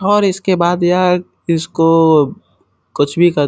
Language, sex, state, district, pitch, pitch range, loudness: Hindi, male, Uttar Pradesh, Muzaffarnagar, 175 Hz, 165-180 Hz, -14 LUFS